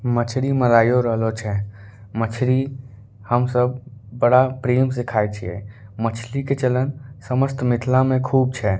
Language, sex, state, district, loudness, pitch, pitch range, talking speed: Angika, male, Bihar, Bhagalpur, -20 LUFS, 120 Hz, 110-130 Hz, 135 wpm